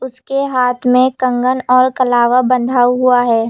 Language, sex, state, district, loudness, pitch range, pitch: Hindi, female, Uttar Pradesh, Lucknow, -13 LUFS, 245-255 Hz, 255 Hz